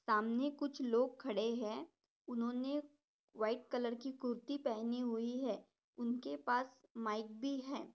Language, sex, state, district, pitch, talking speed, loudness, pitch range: Hindi, female, Maharashtra, Dhule, 245 Hz, 135 wpm, -40 LUFS, 230-275 Hz